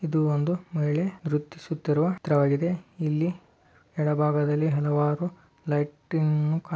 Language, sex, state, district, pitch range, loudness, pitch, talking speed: Kannada, male, Karnataka, Dharwad, 150-165 Hz, -26 LUFS, 155 Hz, 80 wpm